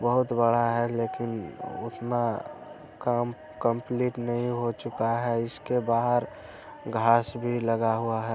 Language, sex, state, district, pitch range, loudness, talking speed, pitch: Hindi, male, Bihar, Araria, 115-120 Hz, -28 LUFS, 130 wpm, 120 Hz